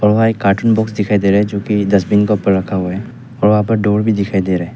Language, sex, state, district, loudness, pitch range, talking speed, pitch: Hindi, male, Arunachal Pradesh, Papum Pare, -14 LUFS, 100-110 Hz, 340 wpm, 105 Hz